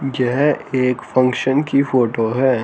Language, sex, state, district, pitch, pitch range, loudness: Hindi, male, Haryana, Charkhi Dadri, 130 Hz, 125-135 Hz, -17 LUFS